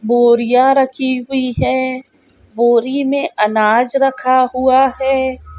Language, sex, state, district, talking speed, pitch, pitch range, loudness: Hindi, female, Uttar Pradesh, Hamirpur, 105 wpm, 255 Hz, 240-265 Hz, -14 LUFS